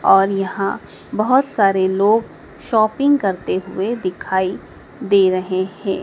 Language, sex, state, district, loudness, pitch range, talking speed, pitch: Hindi, female, Madhya Pradesh, Dhar, -18 LUFS, 190-215 Hz, 120 wpm, 195 Hz